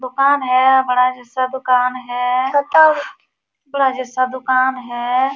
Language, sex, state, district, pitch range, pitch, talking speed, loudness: Hindi, female, Uttar Pradesh, Jalaun, 255-265 Hz, 255 Hz, 110 wpm, -16 LUFS